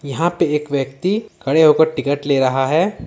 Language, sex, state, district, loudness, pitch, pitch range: Hindi, male, Jharkhand, Ranchi, -17 LUFS, 150 Hz, 140-165 Hz